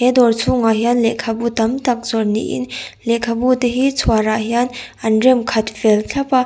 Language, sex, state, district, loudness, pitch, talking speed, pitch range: Mizo, female, Mizoram, Aizawl, -17 LUFS, 235 Hz, 195 wpm, 220-250 Hz